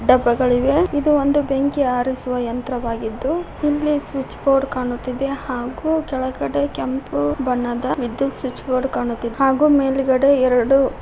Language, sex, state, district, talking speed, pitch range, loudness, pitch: Kannada, female, Karnataka, Koppal, 115 wpm, 245-275 Hz, -19 LUFS, 260 Hz